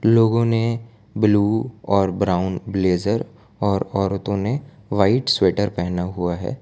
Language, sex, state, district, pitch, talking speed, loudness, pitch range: Hindi, male, Gujarat, Valsad, 105 Hz, 125 wpm, -21 LUFS, 95-115 Hz